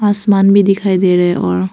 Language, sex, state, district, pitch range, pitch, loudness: Hindi, female, Arunachal Pradesh, Papum Pare, 175-200 Hz, 195 Hz, -12 LUFS